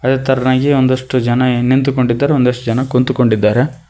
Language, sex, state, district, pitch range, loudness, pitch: Kannada, male, Karnataka, Koppal, 125-135 Hz, -14 LUFS, 130 Hz